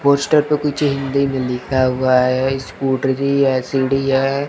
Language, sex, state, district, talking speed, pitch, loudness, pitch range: Hindi, male, Chandigarh, Chandigarh, 160 wpm, 135 Hz, -17 LUFS, 130-140 Hz